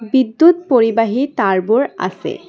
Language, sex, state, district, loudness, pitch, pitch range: Assamese, female, Assam, Kamrup Metropolitan, -15 LUFS, 240 Hz, 225-275 Hz